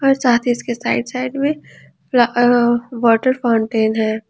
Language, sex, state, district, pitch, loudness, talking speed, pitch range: Hindi, female, Jharkhand, Ranchi, 240 Hz, -17 LUFS, 140 wpm, 230-255 Hz